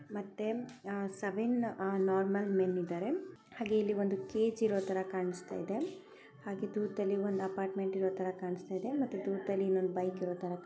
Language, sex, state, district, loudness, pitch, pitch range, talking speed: Kannada, female, Karnataka, Chamarajanagar, -35 LUFS, 195 Hz, 190-215 Hz, 135 wpm